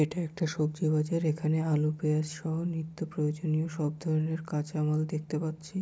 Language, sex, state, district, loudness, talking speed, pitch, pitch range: Bengali, male, West Bengal, Kolkata, -31 LUFS, 145 wpm, 155 Hz, 155-160 Hz